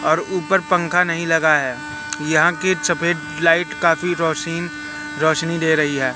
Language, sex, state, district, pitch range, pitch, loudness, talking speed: Hindi, male, Madhya Pradesh, Katni, 150-170 Hz, 165 Hz, -18 LUFS, 155 wpm